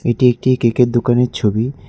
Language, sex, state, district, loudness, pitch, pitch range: Bengali, male, West Bengal, Cooch Behar, -15 LUFS, 120 Hz, 120-125 Hz